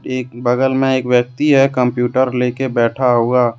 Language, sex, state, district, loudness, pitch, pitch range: Hindi, male, Jharkhand, Deoghar, -15 LUFS, 125 Hz, 120-130 Hz